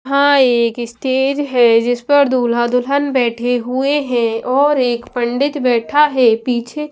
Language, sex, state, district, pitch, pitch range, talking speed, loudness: Hindi, female, Punjab, Pathankot, 250 Hz, 240-280 Hz, 140 wpm, -15 LUFS